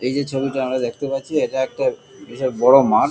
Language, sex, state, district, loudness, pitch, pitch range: Bengali, male, West Bengal, Kolkata, -19 LUFS, 135 Hz, 130-140 Hz